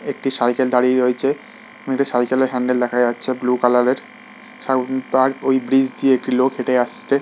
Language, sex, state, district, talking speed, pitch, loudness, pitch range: Bengali, male, West Bengal, Purulia, 165 wpm, 130 Hz, -18 LUFS, 125-135 Hz